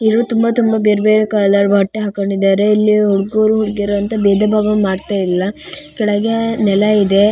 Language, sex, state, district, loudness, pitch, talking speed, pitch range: Kannada, female, Karnataka, Shimoga, -14 LUFS, 210 Hz, 165 wpm, 200-215 Hz